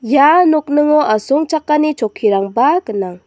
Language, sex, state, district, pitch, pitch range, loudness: Garo, female, Meghalaya, West Garo Hills, 285 Hz, 215-300 Hz, -13 LUFS